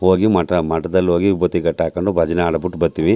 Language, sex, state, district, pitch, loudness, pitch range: Kannada, male, Karnataka, Chamarajanagar, 90 Hz, -17 LUFS, 85-90 Hz